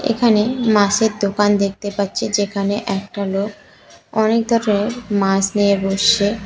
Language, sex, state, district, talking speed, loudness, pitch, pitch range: Bengali, female, West Bengal, Cooch Behar, 120 wpm, -17 LUFS, 205 Hz, 200-220 Hz